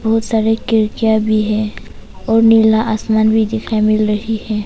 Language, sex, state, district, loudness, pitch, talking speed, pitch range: Hindi, female, Arunachal Pradesh, Papum Pare, -14 LUFS, 220 Hz, 165 wpm, 215-225 Hz